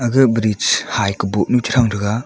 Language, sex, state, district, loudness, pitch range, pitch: Wancho, female, Arunachal Pradesh, Longding, -16 LUFS, 105-120 Hz, 110 Hz